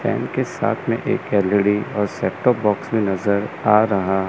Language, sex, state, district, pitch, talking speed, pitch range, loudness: Hindi, male, Chandigarh, Chandigarh, 105 Hz, 180 wpm, 100-115 Hz, -20 LUFS